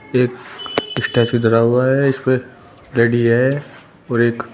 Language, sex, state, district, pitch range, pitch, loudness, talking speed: Hindi, male, Uttar Pradesh, Shamli, 115-135 Hz, 125 Hz, -17 LUFS, 130 wpm